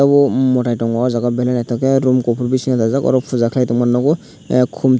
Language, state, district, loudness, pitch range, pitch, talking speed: Kokborok, Tripura, Dhalai, -16 LUFS, 120-130 Hz, 125 Hz, 240 wpm